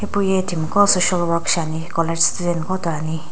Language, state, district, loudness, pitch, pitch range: Sumi, Nagaland, Dimapur, -19 LUFS, 170 Hz, 165-185 Hz